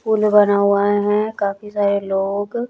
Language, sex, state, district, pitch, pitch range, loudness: Hindi, female, Chandigarh, Chandigarh, 205 Hz, 200-210 Hz, -17 LUFS